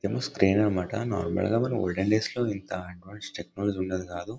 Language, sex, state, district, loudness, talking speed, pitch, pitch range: Telugu, male, Karnataka, Bellary, -28 LUFS, 180 wpm, 100 Hz, 90-110 Hz